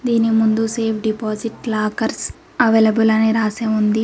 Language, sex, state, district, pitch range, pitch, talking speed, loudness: Telugu, female, Telangana, Mahabubabad, 220-225 Hz, 220 Hz, 135 wpm, -18 LUFS